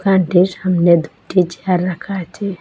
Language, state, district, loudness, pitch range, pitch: Bengali, Assam, Hailakandi, -16 LUFS, 175-190 Hz, 185 Hz